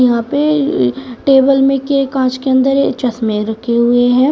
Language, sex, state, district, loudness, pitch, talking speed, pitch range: Hindi, female, Uttar Pradesh, Shamli, -13 LUFS, 260 Hz, 180 wpm, 240-275 Hz